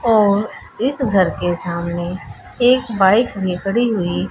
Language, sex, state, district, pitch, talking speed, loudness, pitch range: Hindi, female, Haryana, Charkhi Dadri, 195 Hz, 140 wpm, -17 LUFS, 175-230 Hz